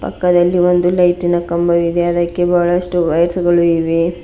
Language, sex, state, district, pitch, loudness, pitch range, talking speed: Kannada, female, Karnataka, Bidar, 175 Hz, -14 LUFS, 170-175 Hz, 115 wpm